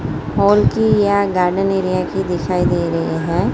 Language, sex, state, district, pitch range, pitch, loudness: Hindi, female, Gujarat, Gandhinagar, 170-195 Hz, 180 Hz, -16 LUFS